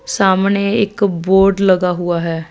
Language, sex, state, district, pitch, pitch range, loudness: Hindi, female, Punjab, Fazilka, 190 Hz, 175-200 Hz, -14 LUFS